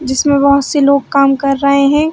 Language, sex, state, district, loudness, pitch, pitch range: Hindi, female, Chhattisgarh, Bilaspur, -11 LUFS, 280 Hz, 275-280 Hz